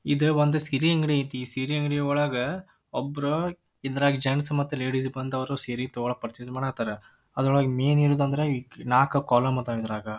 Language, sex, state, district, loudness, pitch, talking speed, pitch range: Kannada, male, Karnataka, Dharwad, -26 LUFS, 135 Hz, 145 wpm, 125-145 Hz